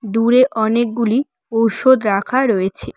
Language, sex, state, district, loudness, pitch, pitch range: Bengali, female, West Bengal, Cooch Behar, -16 LUFS, 230 Hz, 220-250 Hz